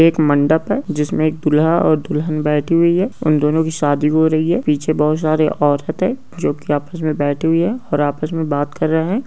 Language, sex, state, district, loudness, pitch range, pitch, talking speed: Hindi, male, West Bengal, Malda, -17 LUFS, 150-165 Hz, 155 Hz, 225 wpm